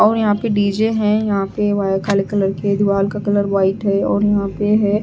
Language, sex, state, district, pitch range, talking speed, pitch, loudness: Hindi, female, Punjab, Pathankot, 195-210 Hz, 240 wpm, 205 Hz, -17 LUFS